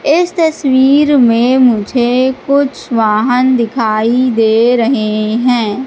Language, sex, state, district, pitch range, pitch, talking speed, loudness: Hindi, female, Madhya Pradesh, Katni, 225-265 Hz, 245 Hz, 100 wpm, -11 LUFS